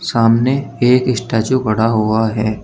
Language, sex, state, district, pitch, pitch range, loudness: Hindi, male, Uttar Pradesh, Shamli, 115 Hz, 110-125 Hz, -15 LUFS